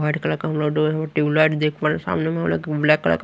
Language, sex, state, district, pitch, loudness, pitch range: Hindi, male, Haryana, Rohtak, 155 Hz, -21 LUFS, 150-155 Hz